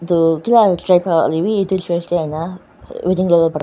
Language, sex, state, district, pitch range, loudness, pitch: Nagamese, female, Nagaland, Dimapur, 165-185 Hz, -16 LUFS, 175 Hz